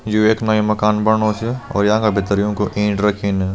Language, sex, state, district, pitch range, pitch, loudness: Hindi, male, Uttarakhand, Uttarkashi, 100-110 Hz, 105 Hz, -17 LUFS